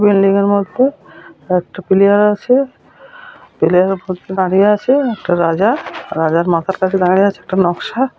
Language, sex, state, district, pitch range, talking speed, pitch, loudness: Bengali, female, West Bengal, North 24 Parganas, 180-210 Hz, 145 wpm, 195 Hz, -14 LUFS